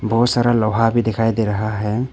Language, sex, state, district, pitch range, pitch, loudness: Hindi, male, Arunachal Pradesh, Papum Pare, 110-120 Hz, 115 Hz, -18 LUFS